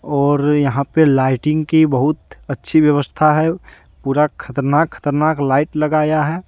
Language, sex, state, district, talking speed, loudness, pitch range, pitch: Hindi, male, Jharkhand, Deoghar, 140 wpm, -16 LUFS, 140-155 Hz, 150 Hz